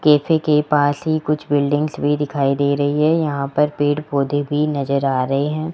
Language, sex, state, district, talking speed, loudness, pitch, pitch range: Hindi, male, Rajasthan, Jaipur, 210 wpm, -18 LUFS, 145 Hz, 140-150 Hz